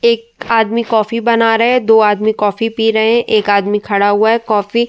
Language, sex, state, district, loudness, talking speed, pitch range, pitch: Hindi, female, Uttar Pradesh, Muzaffarnagar, -13 LUFS, 235 wpm, 210-230 Hz, 225 Hz